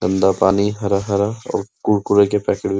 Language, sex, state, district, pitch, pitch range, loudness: Hindi, male, Uttar Pradesh, Muzaffarnagar, 100 Hz, 100-105 Hz, -18 LUFS